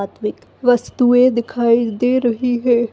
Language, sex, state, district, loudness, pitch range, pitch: Hindi, female, Goa, North and South Goa, -16 LUFS, 235-250 Hz, 240 Hz